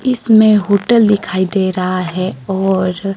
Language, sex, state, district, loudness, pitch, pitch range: Hindi, female, Himachal Pradesh, Shimla, -13 LUFS, 195 Hz, 185-215 Hz